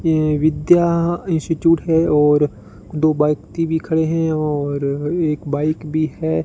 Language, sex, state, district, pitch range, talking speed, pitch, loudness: Hindi, male, Rajasthan, Bikaner, 150-165 Hz, 140 wpm, 155 Hz, -18 LUFS